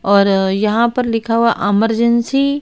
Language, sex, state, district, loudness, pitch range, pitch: Hindi, female, Haryana, Rohtak, -15 LUFS, 205-235 Hz, 230 Hz